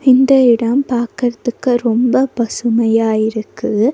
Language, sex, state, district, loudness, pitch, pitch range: Tamil, female, Tamil Nadu, Nilgiris, -14 LUFS, 240 Hz, 230-255 Hz